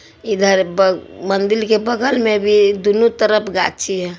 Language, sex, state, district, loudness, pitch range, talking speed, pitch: Hindi, female, Bihar, Supaul, -16 LUFS, 195-220 Hz, 155 wpm, 205 Hz